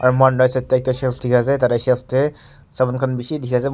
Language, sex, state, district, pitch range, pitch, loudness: Nagamese, male, Nagaland, Kohima, 125-135 Hz, 130 Hz, -18 LUFS